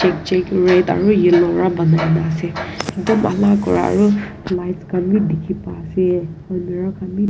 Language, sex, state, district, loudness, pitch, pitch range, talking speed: Nagamese, female, Nagaland, Kohima, -17 LUFS, 180 Hz, 175-190 Hz, 165 wpm